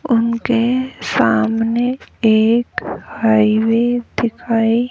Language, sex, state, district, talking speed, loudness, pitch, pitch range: Hindi, female, Haryana, Rohtak, 60 wpm, -16 LUFS, 230 Hz, 225-240 Hz